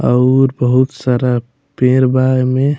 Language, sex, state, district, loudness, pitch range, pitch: Bhojpuri, male, Bihar, Muzaffarpur, -13 LUFS, 125-130 Hz, 130 Hz